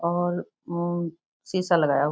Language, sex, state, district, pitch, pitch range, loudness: Hindi, female, Bihar, Muzaffarpur, 170 Hz, 170-175 Hz, -26 LUFS